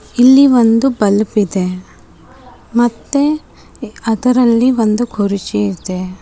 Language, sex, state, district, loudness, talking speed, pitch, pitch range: Kannada, female, Karnataka, Bidar, -13 LUFS, 85 wpm, 225 Hz, 200-250 Hz